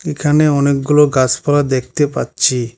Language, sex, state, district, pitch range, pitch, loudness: Bengali, male, West Bengal, Cooch Behar, 130-150 Hz, 145 Hz, -14 LUFS